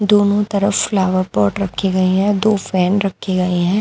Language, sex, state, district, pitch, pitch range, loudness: Hindi, female, Bihar, West Champaran, 195 Hz, 185-205 Hz, -16 LUFS